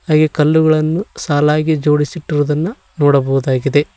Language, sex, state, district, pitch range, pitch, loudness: Kannada, male, Karnataka, Koppal, 145-155 Hz, 150 Hz, -15 LUFS